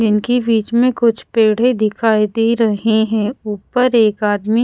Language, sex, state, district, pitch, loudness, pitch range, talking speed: Hindi, female, Odisha, Khordha, 225 Hz, -15 LUFS, 215-235 Hz, 155 wpm